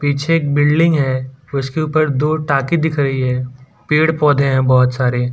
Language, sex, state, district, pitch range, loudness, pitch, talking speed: Hindi, male, Gujarat, Valsad, 130-155 Hz, -16 LUFS, 140 Hz, 190 wpm